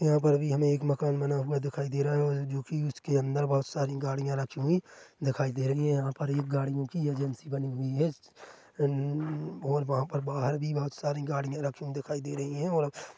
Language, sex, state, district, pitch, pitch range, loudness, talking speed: Hindi, male, Chhattisgarh, Korba, 140 Hz, 140-145 Hz, -31 LUFS, 230 wpm